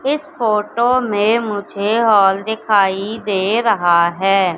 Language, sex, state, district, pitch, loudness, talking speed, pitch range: Hindi, female, Madhya Pradesh, Katni, 210 Hz, -16 LUFS, 120 wpm, 195-230 Hz